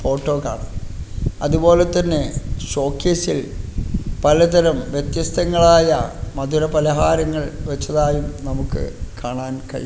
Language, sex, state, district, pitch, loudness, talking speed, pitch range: Malayalam, male, Kerala, Kasaragod, 145 Hz, -19 LUFS, 75 wpm, 120-160 Hz